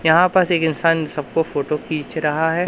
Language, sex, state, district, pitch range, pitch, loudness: Hindi, male, Madhya Pradesh, Umaria, 150-165 Hz, 160 Hz, -19 LUFS